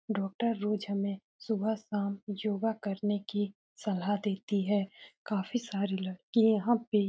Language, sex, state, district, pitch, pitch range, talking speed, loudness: Hindi, female, Bihar, Saran, 205 Hz, 200-220 Hz, 145 wpm, -32 LUFS